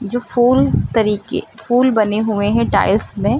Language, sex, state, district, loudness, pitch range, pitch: Hindi, female, Uttar Pradesh, Lucknow, -16 LUFS, 210-240 Hz, 220 Hz